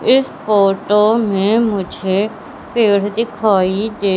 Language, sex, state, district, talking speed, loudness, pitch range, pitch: Hindi, female, Madhya Pradesh, Katni, 100 wpm, -15 LUFS, 195-220 Hz, 210 Hz